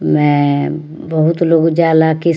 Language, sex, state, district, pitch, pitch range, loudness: Bhojpuri, female, Bihar, Muzaffarpur, 160 Hz, 150-165 Hz, -13 LUFS